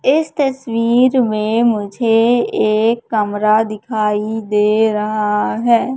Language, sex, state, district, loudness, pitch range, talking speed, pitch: Hindi, female, Madhya Pradesh, Katni, -15 LUFS, 215-240 Hz, 100 wpm, 220 Hz